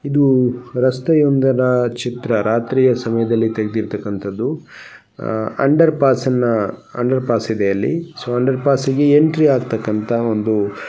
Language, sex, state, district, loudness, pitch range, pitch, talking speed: Kannada, male, Karnataka, Gulbarga, -17 LUFS, 110-135 Hz, 125 Hz, 110 wpm